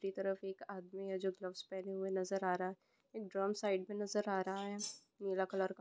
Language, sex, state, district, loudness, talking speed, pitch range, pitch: Hindi, female, West Bengal, Purulia, -41 LUFS, 195 wpm, 190-195 Hz, 195 Hz